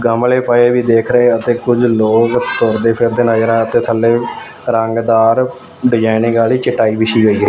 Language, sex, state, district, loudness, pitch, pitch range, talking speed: Punjabi, male, Punjab, Fazilka, -13 LUFS, 115 Hz, 115-120 Hz, 170 wpm